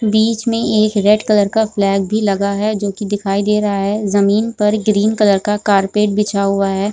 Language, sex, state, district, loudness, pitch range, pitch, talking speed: Hindi, female, Bihar, Supaul, -15 LUFS, 200-215 Hz, 210 Hz, 215 wpm